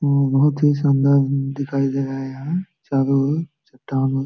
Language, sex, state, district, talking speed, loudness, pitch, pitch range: Hindi, male, Bihar, Jamui, 170 wpm, -20 LUFS, 140 Hz, 135-145 Hz